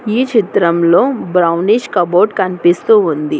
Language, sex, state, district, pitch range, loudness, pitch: Telugu, female, Telangana, Hyderabad, 175-250 Hz, -12 LUFS, 205 Hz